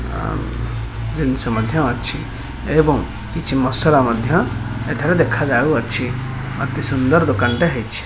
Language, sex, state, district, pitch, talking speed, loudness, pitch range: Odia, male, Odisha, Khordha, 125 Hz, 120 wpm, -18 LUFS, 115-145 Hz